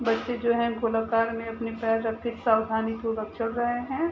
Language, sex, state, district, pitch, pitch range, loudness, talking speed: Hindi, female, Uttar Pradesh, Gorakhpur, 230 Hz, 225-235 Hz, -27 LUFS, 190 wpm